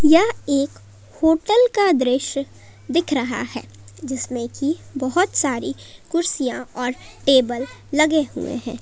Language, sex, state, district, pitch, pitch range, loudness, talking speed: Hindi, female, Jharkhand, Palamu, 275 Hz, 245-320 Hz, -21 LUFS, 120 wpm